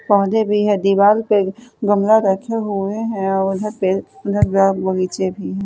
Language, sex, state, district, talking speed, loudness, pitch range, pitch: Hindi, female, Chhattisgarh, Raipur, 180 wpm, -17 LUFS, 195-210 Hz, 200 Hz